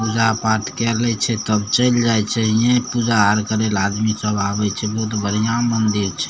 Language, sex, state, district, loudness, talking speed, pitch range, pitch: Maithili, male, Bihar, Samastipur, -18 LUFS, 210 wpm, 105-115 Hz, 110 Hz